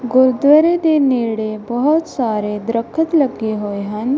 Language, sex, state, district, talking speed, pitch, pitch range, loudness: Punjabi, female, Punjab, Kapurthala, 130 wpm, 245 Hz, 220-295 Hz, -16 LUFS